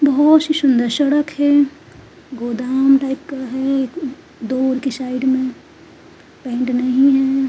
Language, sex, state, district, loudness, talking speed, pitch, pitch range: Hindi, female, Uttarakhand, Tehri Garhwal, -17 LUFS, 130 wpm, 270 Hz, 255-285 Hz